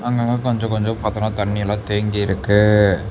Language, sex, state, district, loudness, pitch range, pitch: Tamil, male, Tamil Nadu, Namakkal, -18 LUFS, 105-110 Hz, 105 Hz